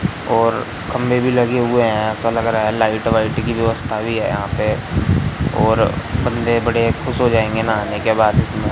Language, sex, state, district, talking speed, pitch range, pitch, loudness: Hindi, male, Madhya Pradesh, Katni, 195 wpm, 110-120 Hz, 115 Hz, -17 LUFS